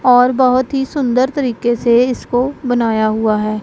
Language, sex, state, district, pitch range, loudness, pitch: Hindi, female, Punjab, Pathankot, 235-255 Hz, -15 LUFS, 245 Hz